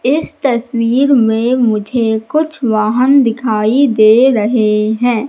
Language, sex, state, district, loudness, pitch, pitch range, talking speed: Hindi, female, Madhya Pradesh, Katni, -12 LUFS, 235 Hz, 220-260 Hz, 115 wpm